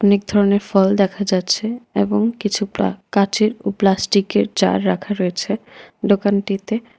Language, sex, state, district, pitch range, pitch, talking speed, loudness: Bengali, female, Tripura, West Tripura, 195-215 Hz, 200 Hz, 130 wpm, -18 LUFS